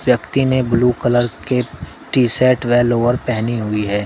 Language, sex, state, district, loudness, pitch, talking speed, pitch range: Hindi, male, Uttar Pradesh, Shamli, -16 LUFS, 120 Hz, 175 wpm, 115-125 Hz